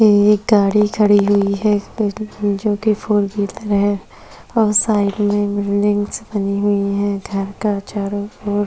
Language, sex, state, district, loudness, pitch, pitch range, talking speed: Hindi, female, Maharashtra, Chandrapur, -17 LUFS, 205 Hz, 200-210 Hz, 150 wpm